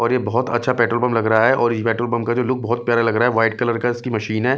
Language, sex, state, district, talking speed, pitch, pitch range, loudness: Hindi, male, Bihar, West Champaran, 355 wpm, 120 Hz, 115-120 Hz, -19 LUFS